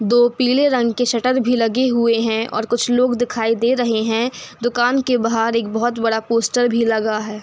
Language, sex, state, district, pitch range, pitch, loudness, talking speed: Hindi, female, Uttar Pradesh, Hamirpur, 225-245 Hz, 235 Hz, -18 LUFS, 210 wpm